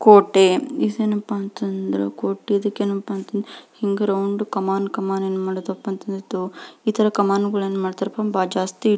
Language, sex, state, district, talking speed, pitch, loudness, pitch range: Kannada, female, Karnataka, Belgaum, 115 wpm, 200 Hz, -22 LUFS, 190-205 Hz